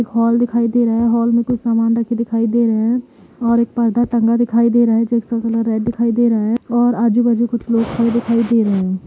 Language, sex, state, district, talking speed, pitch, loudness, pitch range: Hindi, female, Uttar Pradesh, Varanasi, 265 wpm, 235 Hz, -16 LUFS, 230-235 Hz